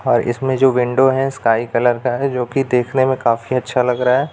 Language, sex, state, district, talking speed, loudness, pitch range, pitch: Hindi, male, Bihar, Jamui, 250 wpm, -17 LUFS, 120-130 Hz, 125 Hz